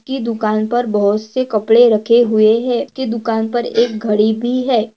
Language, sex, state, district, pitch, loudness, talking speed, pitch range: Hindi, female, Maharashtra, Dhule, 230 Hz, -15 LUFS, 180 wpm, 215-240 Hz